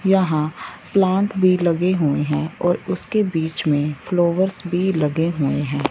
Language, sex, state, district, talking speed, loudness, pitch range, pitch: Hindi, female, Punjab, Fazilka, 140 wpm, -20 LUFS, 150-185 Hz, 170 Hz